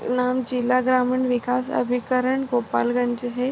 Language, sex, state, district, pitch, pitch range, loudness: Hindi, female, Bihar, Gopalganj, 250 Hz, 245-255 Hz, -22 LUFS